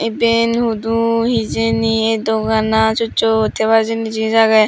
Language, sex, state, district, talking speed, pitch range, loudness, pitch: Chakma, female, Tripura, Dhalai, 130 wpm, 220-230 Hz, -15 LUFS, 225 Hz